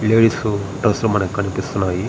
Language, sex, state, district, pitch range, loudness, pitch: Telugu, male, Andhra Pradesh, Srikakulam, 95-110 Hz, -19 LUFS, 105 Hz